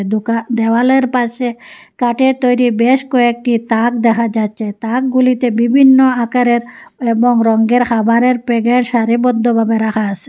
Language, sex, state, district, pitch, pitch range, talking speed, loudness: Bengali, female, Assam, Hailakandi, 240 Hz, 230-250 Hz, 115 wpm, -13 LUFS